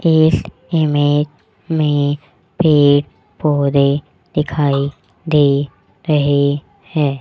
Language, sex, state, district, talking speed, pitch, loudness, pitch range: Hindi, male, Rajasthan, Jaipur, 75 wpm, 145 Hz, -16 LUFS, 140-155 Hz